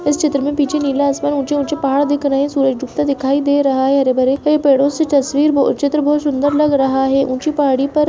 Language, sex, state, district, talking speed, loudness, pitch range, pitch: Hindi, female, Chhattisgarh, Bastar, 230 wpm, -15 LUFS, 275-290 Hz, 285 Hz